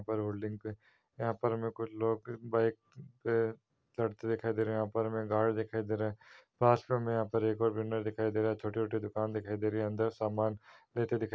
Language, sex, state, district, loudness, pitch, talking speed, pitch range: Hindi, male, Uttar Pradesh, Jyotiba Phule Nagar, -34 LUFS, 110 Hz, 245 wpm, 110-115 Hz